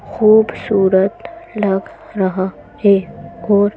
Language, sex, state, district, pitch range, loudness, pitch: Hindi, female, Madhya Pradesh, Bhopal, 190-220 Hz, -15 LUFS, 200 Hz